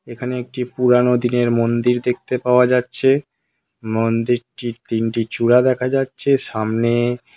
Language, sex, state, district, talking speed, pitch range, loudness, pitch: Bengali, male, West Bengal, Jhargram, 120 wpm, 115-125 Hz, -18 LUFS, 120 Hz